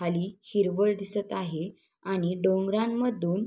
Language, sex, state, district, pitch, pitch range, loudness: Marathi, female, Maharashtra, Sindhudurg, 195 Hz, 180-205 Hz, -28 LUFS